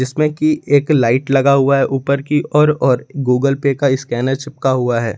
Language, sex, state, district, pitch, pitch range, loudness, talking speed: Hindi, male, Jharkhand, Ranchi, 135 Hz, 130-145 Hz, -15 LUFS, 210 wpm